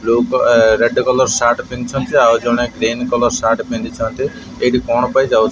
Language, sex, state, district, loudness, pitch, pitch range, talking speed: Odia, male, Odisha, Malkangiri, -15 LUFS, 120 Hz, 115-125 Hz, 165 wpm